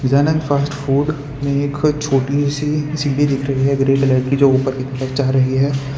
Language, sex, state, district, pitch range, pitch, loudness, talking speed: Hindi, male, Gujarat, Valsad, 135-145 Hz, 140 Hz, -17 LUFS, 210 wpm